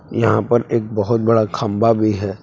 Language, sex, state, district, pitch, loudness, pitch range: Hindi, male, Jharkhand, Palamu, 110 Hz, -17 LUFS, 110-115 Hz